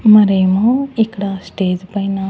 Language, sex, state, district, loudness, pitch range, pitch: Telugu, female, Andhra Pradesh, Annamaya, -15 LUFS, 190-215 Hz, 195 Hz